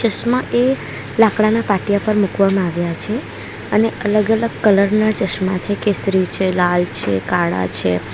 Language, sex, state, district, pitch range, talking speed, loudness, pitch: Gujarati, female, Gujarat, Valsad, 180-215 Hz, 140 wpm, -17 LUFS, 200 Hz